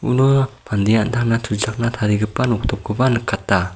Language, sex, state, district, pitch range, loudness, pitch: Garo, male, Meghalaya, South Garo Hills, 105-125 Hz, -19 LUFS, 115 Hz